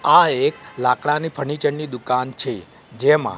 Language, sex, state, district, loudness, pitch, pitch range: Gujarati, male, Gujarat, Gandhinagar, -20 LUFS, 145 Hz, 125-150 Hz